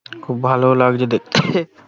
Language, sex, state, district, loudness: Bengali, male, West Bengal, Paschim Medinipur, -16 LUFS